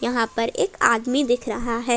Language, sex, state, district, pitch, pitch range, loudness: Hindi, female, Jharkhand, Palamu, 235 Hz, 230-245 Hz, -22 LUFS